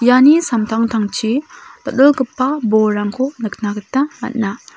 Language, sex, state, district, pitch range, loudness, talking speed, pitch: Garo, female, Meghalaya, South Garo Hills, 220-270 Hz, -16 LUFS, 90 wpm, 240 Hz